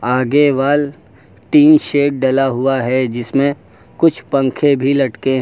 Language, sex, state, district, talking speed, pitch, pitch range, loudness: Hindi, male, Uttar Pradesh, Lucknow, 145 wpm, 135 Hz, 130-145 Hz, -14 LUFS